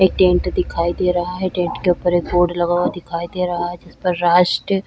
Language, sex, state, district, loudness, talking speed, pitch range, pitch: Hindi, female, Chhattisgarh, Sukma, -18 LUFS, 245 wpm, 175-180 Hz, 175 Hz